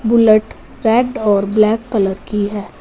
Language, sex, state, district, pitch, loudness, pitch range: Hindi, female, Punjab, Fazilka, 215 Hz, -15 LUFS, 205-230 Hz